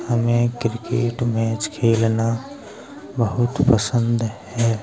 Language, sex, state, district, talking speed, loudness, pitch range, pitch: Hindi, male, Uttar Pradesh, Hamirpur, 85 wpm, -21 LUFS, 115-120 Hz, 115 Hz